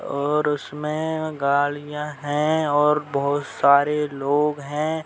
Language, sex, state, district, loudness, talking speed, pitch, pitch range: Hindi, male, Uttar Pradesh, Gorakhpur, -22 LUFS, 105 wpm, 150 Hz, 145-150 Hz